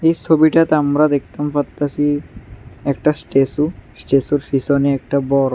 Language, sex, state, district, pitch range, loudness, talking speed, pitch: Bengali, male, Tripura, West Tripura, 135-150 Hz, -17 LUFS, 120 wpm, 145 Hz